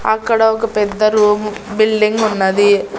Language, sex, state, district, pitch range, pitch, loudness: Telugu, female, Andhra Pradesh, Annamaya, 210-220 Hz, 215 Hz, -14 LUFS